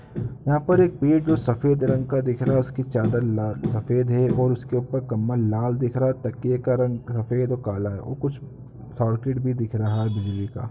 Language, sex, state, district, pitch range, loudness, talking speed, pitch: Hindi, male, Uttar Pradesh, Ghazipur, 115-130 Hz, -23 LUFS, 230 wpm, 125 Hz